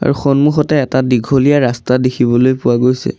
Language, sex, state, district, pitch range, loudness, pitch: Assamese, male, Assam, Sonitpur, 125-140 Hz, -13 LUFS, 130 Hz